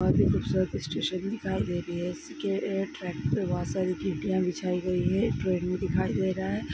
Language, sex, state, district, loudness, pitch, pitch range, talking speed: Hindi, female, Bihar, Darbhanga, -29 LUFS, 180 Hz, 175-185 Hz, 215 wpm